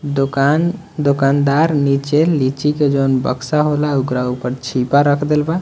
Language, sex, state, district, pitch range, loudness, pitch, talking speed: Bhojpuri, male, Bihar, Muzaffarpur, 135-150 Hz, -16 LUFS, 145 Hz, 150 wpm